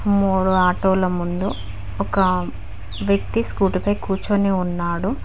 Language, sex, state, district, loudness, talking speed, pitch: Telugu, female, Telangana, Mahabubabad, -19 LUFS, 105 wpm, 180 Hz